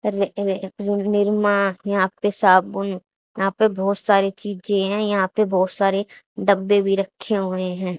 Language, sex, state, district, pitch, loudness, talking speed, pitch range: Hindi, female, Haryana, Charkhi Dadri, 200 Hz, -20 LUFS, 145 wpm, 190-205 Hz